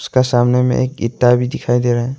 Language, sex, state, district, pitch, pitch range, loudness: Hindi, male, Arunachal Pradesh, Longding, 125 Hz, 120-130 Hz, -15 LUFS